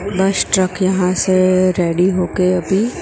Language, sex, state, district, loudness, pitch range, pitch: Hindi, female, Gujarat, Gandhinagar, -15 LUFS, 180-190 Hz, 185 Hz